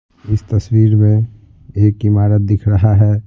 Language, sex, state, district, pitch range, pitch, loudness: Hindi, male, Bihar, Patna, 105-110 Hz, 105 Hz, -13 LUFS